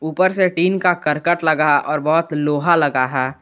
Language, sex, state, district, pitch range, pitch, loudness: Hindi, male, Jharkhand, Garhwa, 150-175 Hz, 155 Hz, -17 LUFS